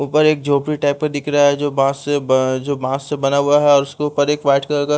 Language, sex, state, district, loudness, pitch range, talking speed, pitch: Hindi, male, Bihar, West Champaran, -17 LUFS, 140-145 Hz, 300 wpm, 145 Hz